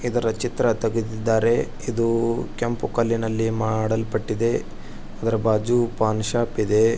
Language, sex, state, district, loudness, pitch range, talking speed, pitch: Kannada, male, Karnataka, Bijapur, -23 LUFS, 110-120 Hz, 105 wpm, 115 Hz